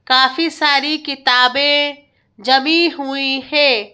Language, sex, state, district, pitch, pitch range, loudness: Hindi, female, Madhya Pradesh, Bhopal, 280 Hz, 260-295 Hz, -14 LUFS